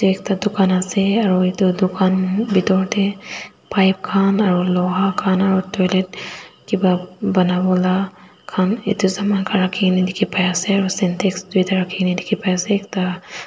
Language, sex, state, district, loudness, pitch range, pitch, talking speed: Nagamese, female, Nagaland, Dimapur, -18 LUFS, 185-200 Hz, 190 Hz, 145 wpm